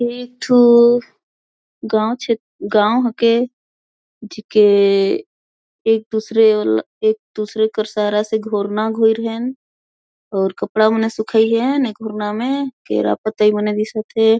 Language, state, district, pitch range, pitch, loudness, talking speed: Kurukh, Chhattisgarh, Jashpur, 215-240 Hz, 220 Hz, -17 LUFS, 120 wpm